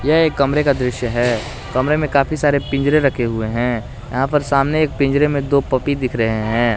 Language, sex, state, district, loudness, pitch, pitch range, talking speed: Hindi, male, Jharkhand, Garhwa, -17 LUFS, 135 Hz, 120-145 Hz, 205 wpm